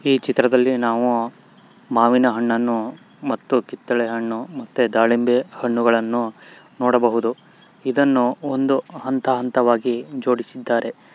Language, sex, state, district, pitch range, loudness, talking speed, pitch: Kannada, male, Karnataka, Mysore, 115-130 Hz, -20 LUFS, 100 wpm, 125 Hz